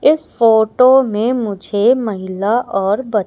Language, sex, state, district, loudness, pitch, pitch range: Hindi, female, Madhya Pradesh, Umaria, -15 LUFS, 220 Hz, 205-250 Hz